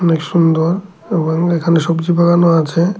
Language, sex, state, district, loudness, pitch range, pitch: Bengali, male, Tripura, Unakoti, -14 LUFS, 165-175 Hz, 170 Hz